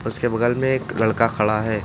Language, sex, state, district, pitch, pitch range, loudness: Hindi, male, Uttar Pradesh, Lucknow, 115 Hz, 110-120 Hz, -20 LUFS